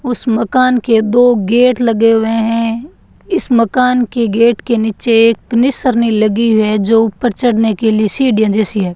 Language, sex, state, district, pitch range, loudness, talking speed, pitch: Hindi, female, Rajasthan, Bikaner, 220-245 Hz, -12 LUFS, 175 wpm, 230 Hz